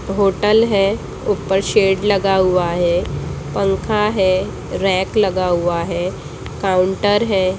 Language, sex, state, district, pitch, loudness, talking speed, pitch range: Hindi, female, Bihar, Jamui, 190 Hz, -17 LUFS, 120 wpm, 180-200 Hz